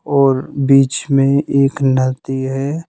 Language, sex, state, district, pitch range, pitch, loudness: Hindi, male, Madhya Pradesh, Bhopal, 135-140 Hz, 135 Hz, -15 LUFS